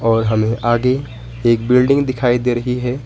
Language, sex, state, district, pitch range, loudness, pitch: Hindi, male, West Bengal, Alipurduar, 115-125 Hz, -16 LUFS, 120 Hz